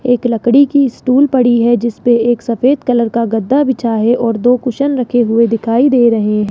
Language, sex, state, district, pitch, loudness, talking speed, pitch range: Hindi, female, Rajasthan, Jaipur, 240 Hz, -12 LUFS, 210 wpm, 230-255 Hz